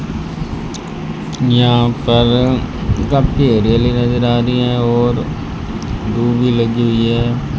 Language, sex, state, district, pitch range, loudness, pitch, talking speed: Hindi, male, Rajasthan, Bikaner, 115-125 Hz, -15 LUFS, 120 Hz, 110 wpm